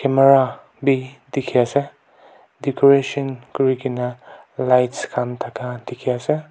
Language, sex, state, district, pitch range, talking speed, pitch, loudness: Nagamese, male, Nagaland, Kohima, 125-140 Hz, 75 wpm, 130 Hz, -20 LUFS